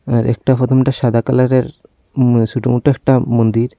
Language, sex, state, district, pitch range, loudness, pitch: Bengali, female, Tripura, Unakoti, 120-130 Hz, -14 LUFS, 125 Hz